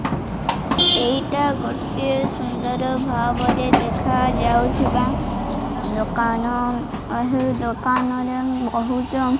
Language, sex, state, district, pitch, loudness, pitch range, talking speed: Odia, female, Odisha, Malkangiri, 250 Hz, -21 LUFS, 240-260 Hz, 65 wpm